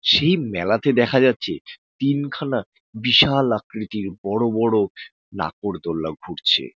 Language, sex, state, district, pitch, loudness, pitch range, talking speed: Bengali, male, West Bengal, Jalpaiguri, 115 Hz, -20 LUFS, 105-135 Hz, 105 wpm